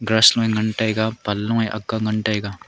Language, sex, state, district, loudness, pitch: Wancho, male, Arunachal Pradesh, Longding, -20 LUFS, 110 Hz